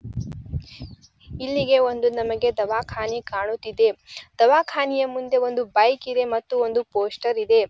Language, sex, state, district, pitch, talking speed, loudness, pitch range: Kannada, female, Karnataka, Bijapur, 240 Hz, 110 wpm, -22 LUFS, 225-260 Hz